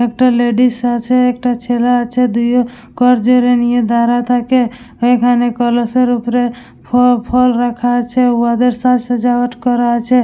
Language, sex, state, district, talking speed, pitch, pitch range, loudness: Bengali, female, West Bengal, Dakshin Dinajpur, 145 wpm, 245 Hz, 240-245 Hz, -13 LUFS